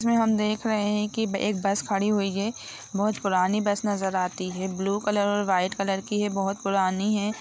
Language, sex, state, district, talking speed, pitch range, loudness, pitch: Hindi, female, Bihar, Jamui, 220 wpm, 195-210 Hz, -26 LUFS, 205 Hz